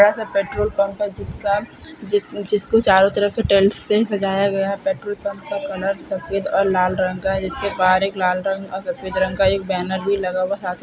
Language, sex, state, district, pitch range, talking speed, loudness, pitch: Hindi, female, Maharashtra, Sindhudurg, 190-205 Hz, 220 wpm, -20 LUFS, 195 Hz